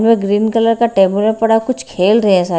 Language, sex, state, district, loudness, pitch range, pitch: Hindi, female, Haryana, Rohtak, -13 LUFS, 195-225 Hz, 220 Hz